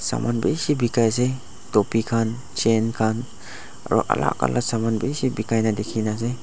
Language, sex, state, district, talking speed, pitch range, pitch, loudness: Nagamese, male, Nagaland, Dimapur, 160 wpm, 110-120 Hz, 115 Hz, -22 LUFS